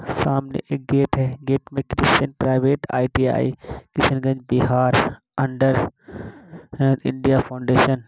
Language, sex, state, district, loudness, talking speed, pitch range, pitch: Hindi, male, Bihar, Kishanganj, -20 LUFS, 120 wpm, 130-135 Hz, 135 Hz